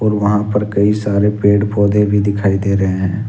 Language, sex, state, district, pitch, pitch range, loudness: Hindi, male, Jharkhand, Ranchi, 105 Hz, 100-105 Hz, -15 LUFS